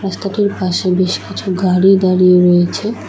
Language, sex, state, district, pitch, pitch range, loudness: Bengali, female, West Bengal, Alipurduar, 185 Hz, 180-195 Hz, -13 LUFS